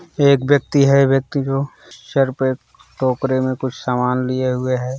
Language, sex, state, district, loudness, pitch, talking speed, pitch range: Hindi, male, Bihar, Gaya, -18 LUFS, 130 Hz, 170 wpm, 130-140 Hz